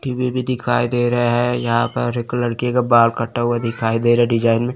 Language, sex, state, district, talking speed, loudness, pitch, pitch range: Hindi, male, Chandigarh, Chandigarh, 240 wpm, -18 LUFS, 120 Hz, 115-125 Hz